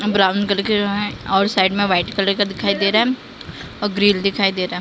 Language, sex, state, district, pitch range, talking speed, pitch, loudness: Hindi, female, Maharashtra, Mumbai Suburban, 195-205 Hz, 275 wpm, 200 Hz, -18 LUFS